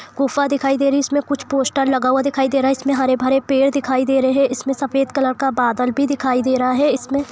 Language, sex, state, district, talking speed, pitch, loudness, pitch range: Hindi, female, Jharkhand, Sahebganj, 255 wpm, 270 Hz, -18 LUFS, 260-275 Hz